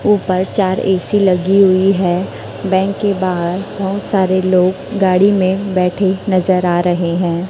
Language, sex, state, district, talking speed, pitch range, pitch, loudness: Hindi, female, Chhattisgarh, Raipur, 150 wpm, 180-195 Hz, 185 Hz, -14 LUFS